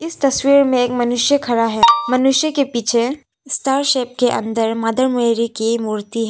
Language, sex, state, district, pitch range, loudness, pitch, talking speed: Hindi, female, Arunachal Pradesh, Papum Pare, 230-275 Hz, -16 LUFS, 245 Hz, 180 wpm